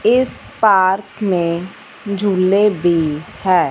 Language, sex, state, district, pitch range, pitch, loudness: Hindi, female, Punjab, Fazilka, 175-205 Hz, 190 Hz, -16 LUFS